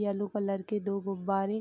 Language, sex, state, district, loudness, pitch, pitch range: Hindi, female, Bihar, Gopalganj, -32 LUFS, 200 Hz, 195-205 Hz